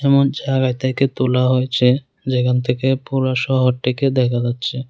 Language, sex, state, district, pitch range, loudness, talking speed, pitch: Bengali, male, Tripura, West Tripura, 125-135 Hz, -18 LUFS, 135 wpm, 130 Hz